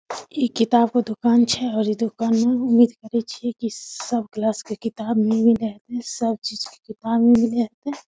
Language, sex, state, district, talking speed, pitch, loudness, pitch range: Maithili, female, Bihar, Samastipur, 185 wpm, 230 Hz, -21 LUFS, 220-240 Hz